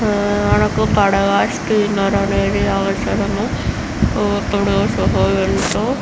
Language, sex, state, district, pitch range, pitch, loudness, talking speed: Telugu, male, Andhra Pradesh, Visakhapatnam, 195-205 Hz, 200 Hz, -17 LUFS, 70 wpm